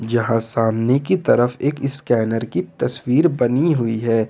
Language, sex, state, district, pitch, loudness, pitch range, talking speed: Hindi, male, Jharkhand, Ranchi, 120 Hz, -19 LUFS, 115-140 Hz, 155 wpm